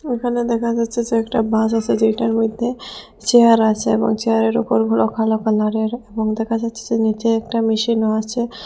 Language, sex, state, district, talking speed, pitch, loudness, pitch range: Bengali, female, Assam, Hailakandi, 195 wpm, 225 Hz, -18 LUFS, 215-230 Hz